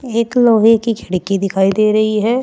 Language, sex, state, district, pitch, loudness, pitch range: Hindi, female, Uttar Pradesh, Saharanpur, 215 Hz, -14 LUFS, 200-230 Hz